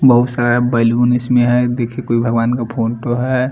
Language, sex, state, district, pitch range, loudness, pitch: Hindi, male, Bihar, Patna, 115-125 Hz, -15 LUFS, 120 Hz